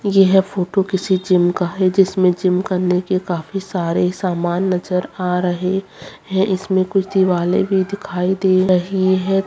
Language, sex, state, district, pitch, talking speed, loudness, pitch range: Hindi, female, Bihar, Bhagalpur, 185 Hz, 150 wpm, -17 LUFS, 180-190 Hz